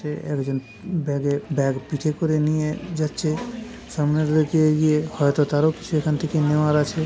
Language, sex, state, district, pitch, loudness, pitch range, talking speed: Bengali, male, West Bengal, Purulia, 155 Hz, -22 LUFS, 145-155 Hz, 155 wpm